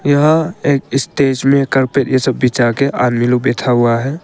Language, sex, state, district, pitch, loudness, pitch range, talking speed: Hindi, male, Arunachal Pradesh, Papum Pare, 135 Hz, -14 LUFS, 125-140 Hz, 200 wpm